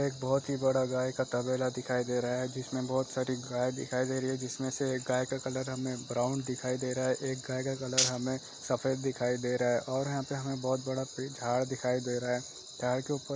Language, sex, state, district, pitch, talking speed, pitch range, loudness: Hindi, male, Chhattisgarh, Sukma, 130 Hz, 255 wpm, 125-130 Hz, -33 LUFS